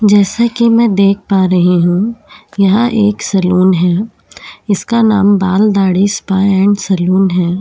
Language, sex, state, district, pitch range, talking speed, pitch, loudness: Hindi, female, Uttar Pradesh, Jyotiba Phule Nagar, 185-210 Hz, 150 wpm, 200 Hz, -11 LUFS